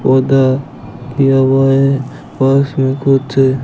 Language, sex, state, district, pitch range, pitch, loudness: Hindi, male, Rajasthan, Bikaner, 130-135 Hz, 135 Hz, -13 LUFS